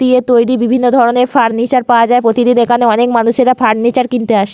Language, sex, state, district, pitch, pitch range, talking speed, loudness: Bengali, female, West Bengal, Malda, 240 Hz, 235-250 Hz, 185 wpm, -11 LUFS